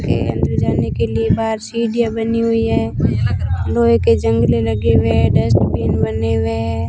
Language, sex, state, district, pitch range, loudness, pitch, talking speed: Hindi, female, Rajasthan, Bikaner, 110-125 Hz, -16 LUFS, 115 Hz, 175 wpm